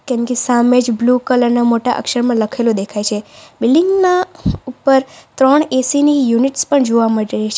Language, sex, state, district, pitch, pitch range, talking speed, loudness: Gujarati, female, Gujarat, Valsad, 250 Hz, 235-275 Hz, 160 wpm, -14 LUFS